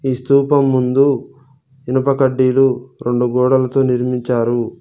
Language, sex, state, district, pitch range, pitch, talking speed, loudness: Telugu, male, Telangana, Mahabubabad, 125-135 Hz, 130 Hz, 100 wpm, -15 LUFS